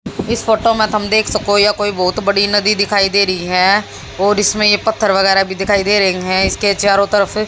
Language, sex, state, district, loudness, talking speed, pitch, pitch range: Hindi, female, Haryana, Jhajjar, -13 LUFS, 225 wpm, 205 Hz, 195-210 Hz